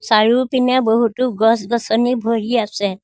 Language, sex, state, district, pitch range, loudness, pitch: Assamese, female, Assam, Sonitpur, 220-250 Hz, -16 LUFS, 230 Hz